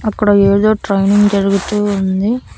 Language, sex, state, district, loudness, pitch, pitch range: Telugu, female, Andhra Pradesh, Annamaya, -13 LUFS, 205 Hz, 195-215 Hz